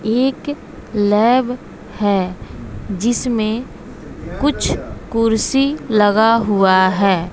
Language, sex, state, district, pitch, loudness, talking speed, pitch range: Hindi, female, Bihar, West Champaran, 220 Hz, -17 LUFS, 75 wpm, 195-245 Hz